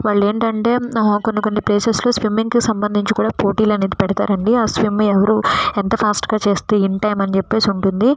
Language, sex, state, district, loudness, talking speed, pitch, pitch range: Telugu, female, Andhra Pradesh, Srikakulam, -17 LUFS, 175 wpm, 210 Hz, 205-220 Hz